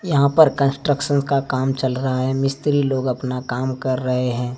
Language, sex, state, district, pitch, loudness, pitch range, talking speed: Hindi, male, Jharkhand, Deoghar, 130 Hz, -20 LUFS, 130-140 Hz, 195 wpm